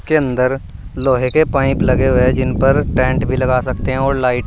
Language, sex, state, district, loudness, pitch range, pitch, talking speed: Hindi, male, Uttar Pradesh, Saharanpur, -15 LUFS, 125-135 Hz, 130 Hz, 230 wpm